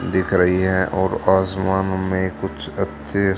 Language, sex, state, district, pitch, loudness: Hindi, female, Haryana, Charkhi Dadri, 95 Hz, -20 LUFS